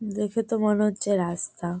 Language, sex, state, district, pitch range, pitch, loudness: Bengali, female, West Bengal, Jalpaiguri, 175-210 Hz, 210 Hz, -25 LUFS